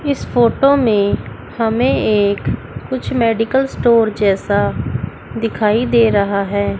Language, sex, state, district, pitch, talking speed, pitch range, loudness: Hindi, female, Chandigarh, Chandigarh, 220 Hz, 115 wpm, 200-235 Hz, -16 LUFS